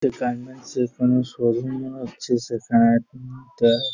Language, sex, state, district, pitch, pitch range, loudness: Bengali, male, West Bengal, Jhargram, 125 Hz, 120-130 Hz, -22 LUFS